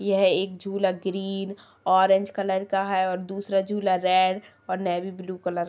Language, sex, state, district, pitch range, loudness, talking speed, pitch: Kumaoni, female, Uttarakhand, Tehri Garhwal, 185-195 Hz, -25 LUFS, 180 wpm, 190 Hz